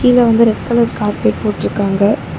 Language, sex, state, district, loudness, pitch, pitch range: Tamil, female, Tamil Nadu, Chennai, -14 LUFS, 220 Hz, 205-235 Hz